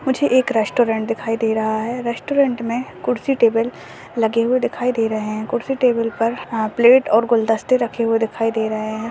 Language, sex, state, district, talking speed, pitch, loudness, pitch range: Hindi, female, Goa, North and South Goa, 195 wpm, 230 Hz, -19 LUFS, 225-245 Hz